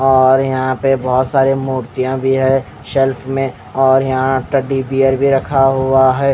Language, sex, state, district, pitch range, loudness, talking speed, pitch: Hindi, male, Odisha, Khordha, 130-135 Hz, -14 LUFS, 160 wpm, 135 Hz